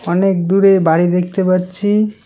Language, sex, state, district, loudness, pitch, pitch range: Bengali, male, West Bengal, Cooch Behar, -14 LUFS, 185 Hz, 180-195 Hz